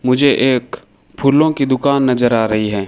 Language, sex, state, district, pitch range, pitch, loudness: Hindi, male, Rajasthan, Bikaner, 115-140 Hz, 130 Hz, -14 LUFS